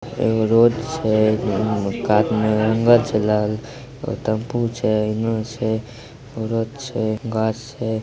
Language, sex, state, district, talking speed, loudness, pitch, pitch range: Maithili, male, Bihar, Samastipur, 65 wpm, -20 LUFS, 110 Hz, 110-120 Hz